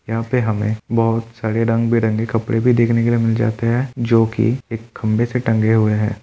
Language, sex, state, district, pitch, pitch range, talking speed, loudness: Hindi, male, Bihar, Kishanganj, 115 Hz, 110-115 Hz, 200 wpm, -18 LUFS